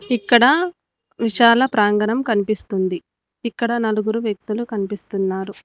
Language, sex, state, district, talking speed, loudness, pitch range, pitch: Telugu, female, Telangana, Mahabubabad, 85 wpm, -18 LUFS, 205-235 Hz, 215 Hz